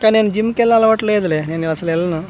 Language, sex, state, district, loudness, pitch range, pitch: Telugu, male, Andhra Pradesh, Manyam, -16 LUFS, 165-220 Hz, 210 Hz